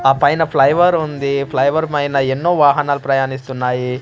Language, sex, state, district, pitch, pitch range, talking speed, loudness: Telugu, male, Andhra Pradesh, Manyam, 140 Hz, 135-150 Hz, 135 wpm, -15 LUFS